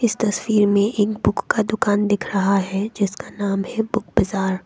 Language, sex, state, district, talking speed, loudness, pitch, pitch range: Hindi, female, Assam, Kamrup Metropolitan, 205 wpm, -20 LUFS, 205 Hz, 195-215 Hz